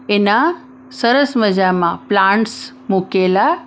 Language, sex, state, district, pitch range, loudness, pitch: Gujarati, female, Maharashtra, Mumbai Suburban, 195-260 Hz, -15 LUFS, 215 Hz